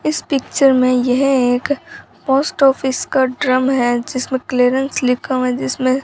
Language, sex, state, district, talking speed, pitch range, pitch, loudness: Hindi, female, Rajasthan, Bikaner, 170 wpm, 255-275 Hz, 260 Hz, -16 LUFS